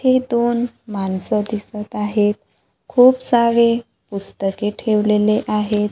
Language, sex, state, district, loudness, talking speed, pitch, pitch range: Marathi, female, Maharashtra, Gondia, -18 LUFS, 100 wpm, 215 Hz, 210-235 Hz